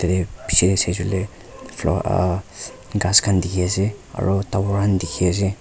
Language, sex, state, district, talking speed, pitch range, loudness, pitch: Nagamese, male, Nagaland, Kohima, 170 wpm, 90-100 Hz, -20 LUFS, 95 Hz